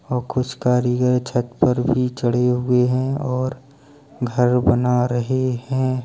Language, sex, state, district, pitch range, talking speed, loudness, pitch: Hindi, male, Uttar Pradesh, Hamirpur, 125-130 Hz, 140 wpm, -20 LUFS, 125 Hz